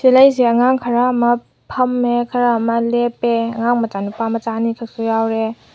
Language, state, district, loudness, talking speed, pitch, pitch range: Manipuri, Manipur, Imphal West, -17 LUFS, 135 wpm, 235 Hz, 230-245 Hz